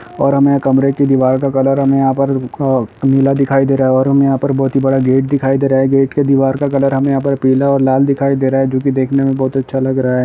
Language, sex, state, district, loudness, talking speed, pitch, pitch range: Hindi, male, Bihar, Gaya, -13 LUFS, 310 wpm, 135 Hz, 135-140 Hz